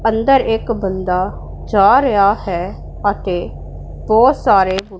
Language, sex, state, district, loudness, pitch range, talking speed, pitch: Punjabi, female, Punjab, Pathankot, -15 LUFS, 180-225 Hz, 120 wpm, 195 Hz